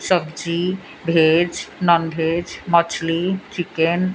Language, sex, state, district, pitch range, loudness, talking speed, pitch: Hindi, female, Odisha, Sambalpur, 165-180 Hz, -20 LUFS, 100 wpm, 170 Hz